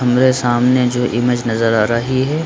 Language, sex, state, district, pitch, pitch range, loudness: Hindi, male, Bihar, Supaul, 125 Hz, 120-130 Hz, -15 LUFS